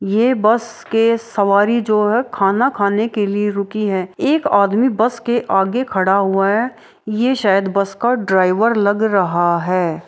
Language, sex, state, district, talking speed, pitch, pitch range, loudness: Maithili, female, Bihar, Araria, 165 wpm, 210 Hz, 195-230 Hz, -16 LUFS